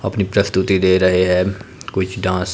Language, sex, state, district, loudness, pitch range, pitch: Hindi, male, Himachal Pradesh, Shimla, -17 LUFS, 90-95 Hz, 95 Hz